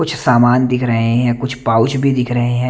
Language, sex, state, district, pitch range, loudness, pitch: Hindi, male, Chandigarh, Chandigarh, 120-130 Hz, -15 LUFS, 125 Hz